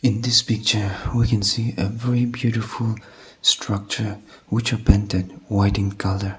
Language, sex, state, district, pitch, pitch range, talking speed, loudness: English, male, Nagaland, Kohima, 105 Hz, 100-115 Hz, 140 wpm, -21 LUFS